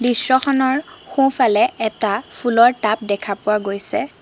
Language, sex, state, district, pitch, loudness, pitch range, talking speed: Assamese, female, Assam, Sonitpur, 240 Hz, -18 LUFS, 210-270 Hz, 115 wpm